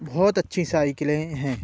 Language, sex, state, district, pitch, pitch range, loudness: Hindi, male, Uttar Pradesh, Budaun, 155 Hz, 145-180 Hz, -24 LUFS